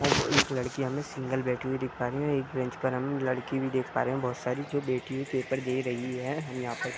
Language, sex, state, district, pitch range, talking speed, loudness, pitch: Hindi, male, Bihar, Bhagalpur, 125-140 Hz, 285 wpm, -30 LUFS, 130 Hz